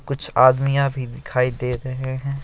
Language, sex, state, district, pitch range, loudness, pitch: Hindi, male, Assam, Kamrup Metropolitan, 130-140 Hz, -20 LUFS, 130 Hz